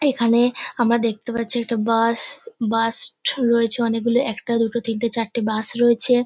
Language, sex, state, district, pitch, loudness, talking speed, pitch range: Bengali, female, West Bengal, North 24 Parganas, 235 Hz, -20 LUFS, 170 wpm, 230-240 Hz